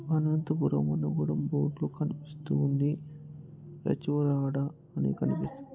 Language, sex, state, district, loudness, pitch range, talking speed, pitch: Telugu, male, Andhra Pradesh, Anantapur, -31 LUFS, 135-155 Hz, 65 wpm, 150 Hz